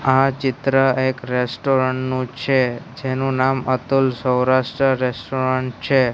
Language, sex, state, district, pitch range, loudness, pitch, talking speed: Gujarati, male, Gujarat, Gandhinagar, 130-135 Hz, -19 LUFS, 130 Hz, 115 wpm